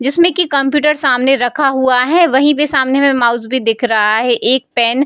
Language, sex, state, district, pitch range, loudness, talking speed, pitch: Hindi, female, Bihar, Darbhanga, 245-285 Hz, -12 LUFS, 225 wpm, 265 Hz